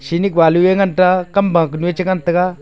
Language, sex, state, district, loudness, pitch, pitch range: Wancho, male, Arunachal Pradesh, Longding, -14 LUFS, 180 Hz, 170-185 Hz